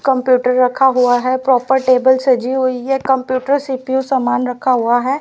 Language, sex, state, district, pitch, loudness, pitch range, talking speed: Hindi, female, Haryana, Rohtak, 260 Hz, -15 LUFS, 250-265 Hz, 170 wpm